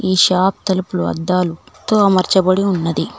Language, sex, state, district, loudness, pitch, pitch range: Telugu, female, Telangana, Mahabubabad, -16 LUFS, 185 Hz, 180-190 Hz